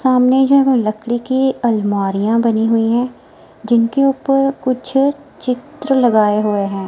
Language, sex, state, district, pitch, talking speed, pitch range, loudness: Hindi, female, Himachal Pradesh, Shimla, 250 Hz, 140 wpm, 220-270 Hz, -15 LUFS